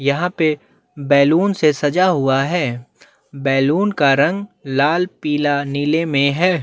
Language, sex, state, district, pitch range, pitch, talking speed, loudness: Hindi, male, Chhattisgarh, Bastar, 140-175 Hz, 145 Hz, 135 wpm, -17 LUFS